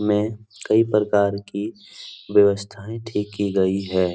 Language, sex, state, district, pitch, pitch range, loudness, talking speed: Hindi, male, Bihar, Supaul, 105 Hz, 100-105 Hz, -21 LUFS, 130 wpm